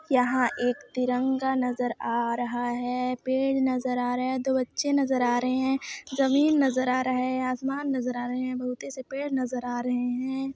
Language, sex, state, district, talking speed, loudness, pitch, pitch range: Hindi, female, Chhattisgarh, Sarguja, 205 wpm, -27 LUFS, 255 Hz, 245-265 Hz